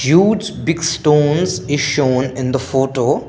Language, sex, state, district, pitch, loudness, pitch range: English, male, Assam, Kamrup Metropolitan, 145 Hz, -16 LUFS, 135-165 Hz